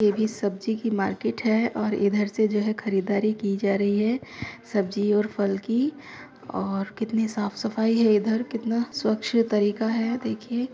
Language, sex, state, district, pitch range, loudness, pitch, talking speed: Hindi, female, Uttar Pradesh, Hamirpur, 205-225 Hz, -25 LUFS, 215 Hz, 175 wpm